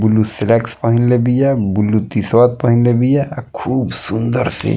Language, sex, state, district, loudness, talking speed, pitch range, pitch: Bhojpuri, male, Bihar, East Champaran, -15 LUFS, 165 wpm, 110-125 Hz, 120 Hz